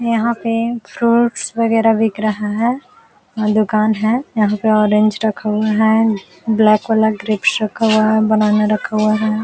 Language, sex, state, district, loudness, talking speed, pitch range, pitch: Hindi, female, Uttar Pradesh, Jalaun, -15 LUFS, 180 wpm, 215-225 Hz, 220 Hz